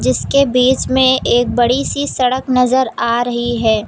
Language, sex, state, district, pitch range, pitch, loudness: Hindi, female, Uttar Pradesh, Lucknow, 240-260 Hz, 250 Hz, -14 LUFS